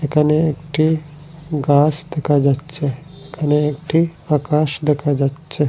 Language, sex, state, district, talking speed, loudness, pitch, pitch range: Bengali, male, Assam, Hailakandi, 105 wpm, -18 LUFS, 150 Hz, 145-155 Hz